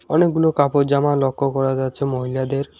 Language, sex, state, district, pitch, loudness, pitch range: Bengali, male, West Bengal, Alipurduar, 140 Hz, -19 LUFS, 135-145 Hz